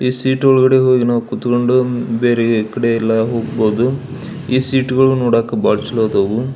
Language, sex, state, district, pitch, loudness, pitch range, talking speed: Kannada, male, Karnataka, Belgaum, 120 Hz, -15 LUFS, 115-130 Hz, 135 wpm